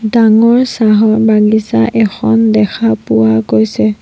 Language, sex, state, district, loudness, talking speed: Assamese, female, Assam, Sonitpur, -10 LUFS, 105 wpm